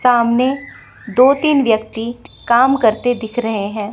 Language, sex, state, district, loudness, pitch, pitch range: Hindi, female, Chandigarh, Chandigarh, -15 LUFS, 240 Hz, 220-255 Hz